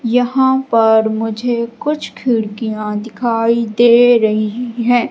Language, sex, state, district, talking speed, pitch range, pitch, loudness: Hindi, female, Madhya Pradesh, Katni, 105 wpm, 220-245 Hz, 235 Hz, -15 LUFS